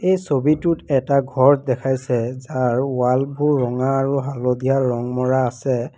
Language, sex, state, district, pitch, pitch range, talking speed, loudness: Assamese, female, Assam, Kamrup Metropolitan, 130 Hz, 125-140 Hz, 130 wpm, -19 LUFS